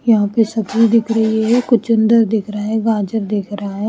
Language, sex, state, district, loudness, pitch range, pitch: Hindi, female, Haryana, Rohtak, -16 LUFS, 210-230 Hz, 220 Hz